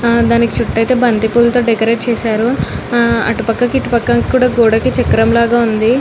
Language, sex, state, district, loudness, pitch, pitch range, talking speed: Telugu, female, Telangana, Nalgonda, -12 LUFS, 235 Hz, 230-240 Hz, 170 wpm